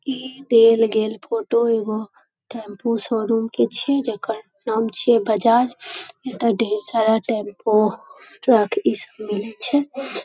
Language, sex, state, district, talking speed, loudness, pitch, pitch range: Maithili, female, Bihar, Saharsa, 125 wpm, -20 LUFS, 230 Hz, 220-260 Hz